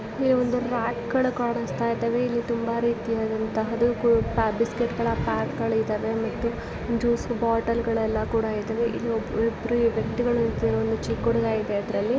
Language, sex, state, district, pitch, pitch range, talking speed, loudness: Kannada, female, Karnataka, Dharwad, 230 Hz, 220-235 Hz, 115 wpm, -25 LUFS